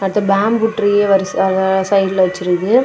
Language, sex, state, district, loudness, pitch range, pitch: Tamil, female, Tamil Nadu, Kanyakumari, -15 LUFS, 190-205 Hz, 195 Hz